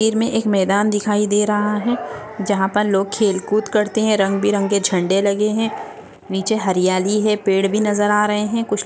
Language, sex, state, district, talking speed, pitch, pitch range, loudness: Hindi, female, Goa, North and South Goa, 210 wpm, 210 Hz, 195-215 Hz, -18 LUFS